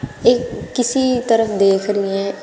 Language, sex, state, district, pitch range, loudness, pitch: Hindi, female, Uttar Pradesh, Shamli, 195-245 Hz, -17 LUFS, 210 Hz